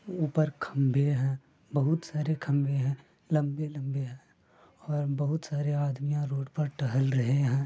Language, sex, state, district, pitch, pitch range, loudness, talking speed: Hindi, male, Bihar, Purnia, 145 Hz, 135-150 Hz, -30 LUFS, 155 wpm